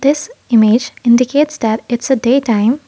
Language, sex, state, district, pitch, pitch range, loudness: English, female, Assam, Kamrup Metropolitan, 250 Hz, 230-280 Hz, -13 LUFS